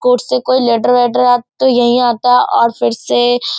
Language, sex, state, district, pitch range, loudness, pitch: Hindi, female, Bihar, Darbhanga, 160-250 Hz, -12 LUFS, 245 Hz